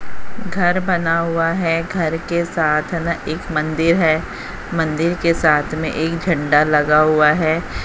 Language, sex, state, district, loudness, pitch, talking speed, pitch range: Hindi, female, Haryana, Jhajjar, -17 LUFS, 165 Hz, 155 wpm, 155-170 Hz